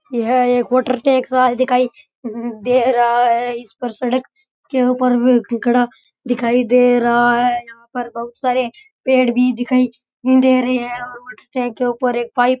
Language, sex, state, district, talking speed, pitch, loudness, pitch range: Rajasthani, male, Rajasthan, Churu, 170 wpm, 245 Hz, -16 LUFS, 240-255 Hz